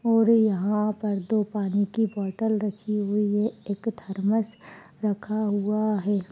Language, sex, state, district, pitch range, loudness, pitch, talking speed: Hindi, female, Uttar Pradesh, Ghazipur, 205-220 Hz, -26 LUFS, 210 Hz, 140 wpm